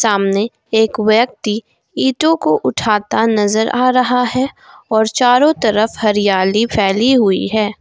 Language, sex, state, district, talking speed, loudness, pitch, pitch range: Hindi, female, Jharkhand, Garhwa, 130 wpm, -14 LUFS, 220 Hz, 210-250 Hz